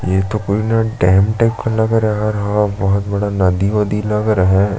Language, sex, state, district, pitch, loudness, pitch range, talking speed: Hindi, male, Chhattisgarh, Jashpur, 105 Hz, -16 LUFS, 100-110 Hz, 240 wpm